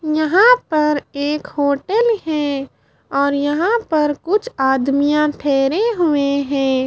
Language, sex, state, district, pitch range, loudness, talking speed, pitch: Hindi, female, Bihar, Kaimur, 280-335 Hz, -17 LUFS, 115 wpm, 295 Hz